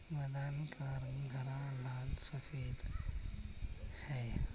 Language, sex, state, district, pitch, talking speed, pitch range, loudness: Hindi, male, Uttar Pradesh, Budaun, 130 Hz, 90 wpm, 100-140 Hz, -44 LUFS